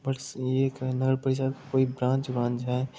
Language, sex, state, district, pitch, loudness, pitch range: Hindi, male, Bihar, Supaul, 130 Hz, -28 LUFS, 125-135 Hz